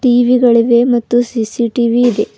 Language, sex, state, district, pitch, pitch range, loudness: Kannada, female, Karnataka, Bidar, 240 Hz, 235-245 Hz, -12 LUFS